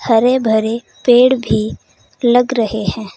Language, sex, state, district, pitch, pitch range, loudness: Hindi, female, Uttar Pradesh, Saharanpur, 235 Hz, 220-245 Hz, -14 LUFS